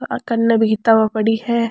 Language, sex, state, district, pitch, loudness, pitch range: Rajasthani, female, Rajasthan, Churu, 225 Hz, -16 LUFS, 220-230 Hz